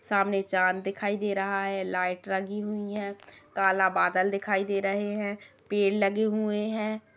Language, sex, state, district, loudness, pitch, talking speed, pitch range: Kumaoni, female, Uttarakhand, Tehri Garhwal, -28 LUFS, 200 Hz, 170 wpm, 195-210 Hz